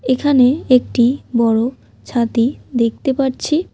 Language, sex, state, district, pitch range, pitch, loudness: Bengali, female, West Bengal, Alipurduar, 235-270 Hz, 250 Hz, -16 LUFS